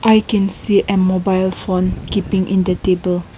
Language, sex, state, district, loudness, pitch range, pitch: English, female, Nagaland, Kohima, -16 LUFS, 185-200 Hz, 190 Hz